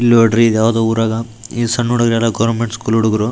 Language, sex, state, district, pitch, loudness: Kannada, male, Karnataka, Raichur, 115 Hz, -15 LUFS